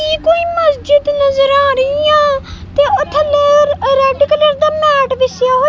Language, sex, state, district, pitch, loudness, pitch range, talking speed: Punjabi, female, Punjab, Kapurthala, 290 Hz, -12 LUFS, 280-310 Hz, 150 wpm